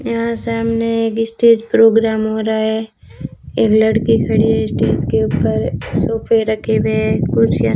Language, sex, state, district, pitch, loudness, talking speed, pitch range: Hindi, female, Rajasthan, Bikaner, 220 Hz, -15 LUFS, 160 wpm, 175-225 Hz